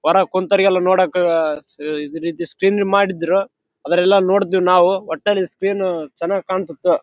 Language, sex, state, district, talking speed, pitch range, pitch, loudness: Kannada, male, Karnataka, Raichur, 50 wpm, 170-195 Hz, 185 Hz, -17 LUFS